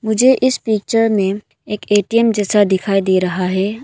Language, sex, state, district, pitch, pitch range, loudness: Hindi, female, Arunachal Pradesh, Longding, 210 Hz, 195-225 Hz, -15 LUFS